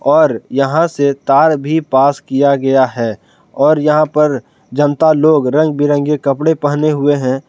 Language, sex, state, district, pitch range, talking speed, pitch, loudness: Hindi, male, Jharkhand, Palamu, 135-155 Hz, 160 wpm, 145 Hz, -13 LUFS